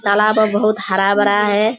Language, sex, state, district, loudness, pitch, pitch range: Hindi, female, Bihar, Kishanganj, -15 LUFS, 205 Hz, 200-215 Hz